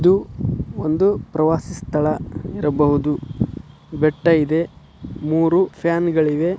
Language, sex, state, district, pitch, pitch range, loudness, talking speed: Kannada, male, Karnataka, Dharwad, 155 Hz, 150-170 Hz, -20 LUFS, 90 wpm